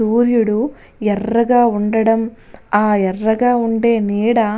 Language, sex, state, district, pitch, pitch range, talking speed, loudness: Telugu, female, Andhra Pradesh, Visakhapatnam, 225 Hz, 210-235 Hz, 105 wpm, -16 LUFS